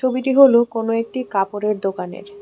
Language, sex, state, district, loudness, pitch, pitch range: Bengali, female, Tripura, West Tripura, -18 LUFS, 225 Hz, 200-255 Hz